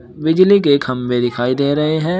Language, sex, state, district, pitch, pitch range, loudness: Hindi, male, Uttar Pradesh, Shamli, 140 Hz, 125-160 Hz, -15 LUFS